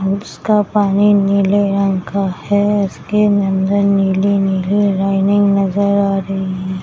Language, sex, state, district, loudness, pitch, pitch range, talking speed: Hindi, female, Bihar, Madhepura, -15 LUFS, 200 Hz, 195-200 Hz, 125 wpm